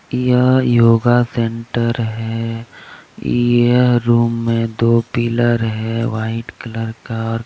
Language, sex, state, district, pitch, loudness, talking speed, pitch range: Hindi, male, Jharkhand, Deoghar, 115 Hz, -16 LUFS, 130 wpm, 115-120 Hz